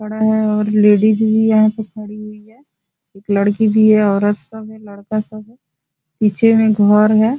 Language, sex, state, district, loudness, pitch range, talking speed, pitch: Hindi, female, Bihar, Jahanabad, -14 LUFS, 205-220 Hz, 160 wpm, 215 Hz